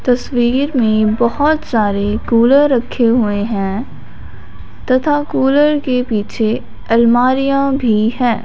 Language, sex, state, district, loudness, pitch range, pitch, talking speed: Hindi, female, Punjab, Fazilka, -14 LUFS, 220-270 Hz, 240 Hz, 105 wpm